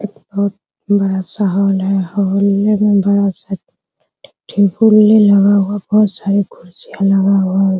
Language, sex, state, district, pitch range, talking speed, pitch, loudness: Hindi, female, Bihar, Araria, 195-205 Hz, 155 wpm, 200 Hz, -13 LUFS